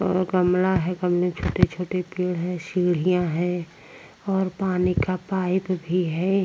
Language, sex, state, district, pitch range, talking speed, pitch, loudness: Hindi, female, Uttar Pradesh, Jyotiba Phule Nagar, 175-185 Hz, 140 wpm, 180 Hz, -24 LUFS